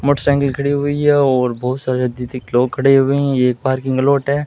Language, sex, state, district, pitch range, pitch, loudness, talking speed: Hindi, male, Rajasthan, Bikaner, 125-140 Hz, 135 Hz, -16 LUFS, 230 wpm